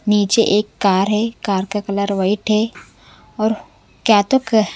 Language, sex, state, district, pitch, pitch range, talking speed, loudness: Hindi, female, Punjab, Kapurthala, 210 Hz, 200-220 Hz, 165 wpm, -17 LUFS